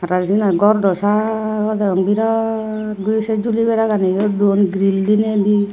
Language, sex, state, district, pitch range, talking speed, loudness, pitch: Chakma, female, Tripura, Unakoti, 200-220 Hz, 135 wpm, -17 LUFS, 210 Hz